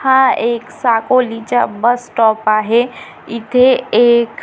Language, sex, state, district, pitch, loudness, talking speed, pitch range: Marathi, female, Maharashtra, Gondia, 235 Hz, -13 LUFS, 110 wpm, 225-250 Hz